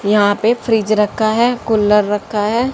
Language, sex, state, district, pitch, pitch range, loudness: Hindi, female, Haryana, Jhajjar, 215 Hz, 210-230 Hz, -15 LUFS